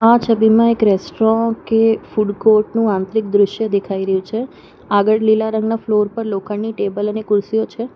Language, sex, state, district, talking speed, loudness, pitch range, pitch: Gujarati, female, Gujarat, Valsad, 175 wpm, -16 LUFS, 205-225 Hz, 220 Hz